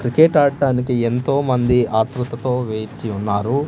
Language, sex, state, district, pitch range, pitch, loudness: Telugu, male, Andhra Pradesh, Manyam, 115-140 Hz, 125 Hz, -18 LUFS